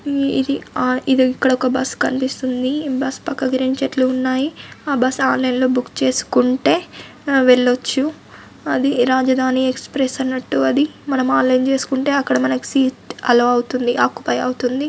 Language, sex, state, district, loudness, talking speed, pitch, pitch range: Telugu, female, Telangana, Karimnagar, -18 LUFS, 145 wpm, 260 Hz, 255-270 Hz